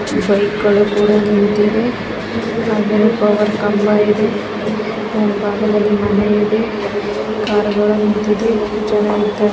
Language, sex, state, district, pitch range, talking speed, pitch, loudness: Kannada, female, Karnataka, Gulbarga, 210-215 Hz, 55 wpm, 210 Hz, -15 LUFS